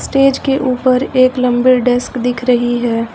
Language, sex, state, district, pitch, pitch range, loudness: Hindi, female, Uttar Pradesh, Lucknow, 250 Hz, 245-255 Hz, -13 LUFS